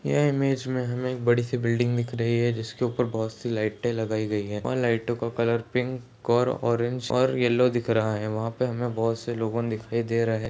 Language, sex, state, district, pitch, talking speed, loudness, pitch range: Hindi, male, Bihar, Saharsa, 120 Hz, 235 wpm, -26 LUFS, 115-125 Hz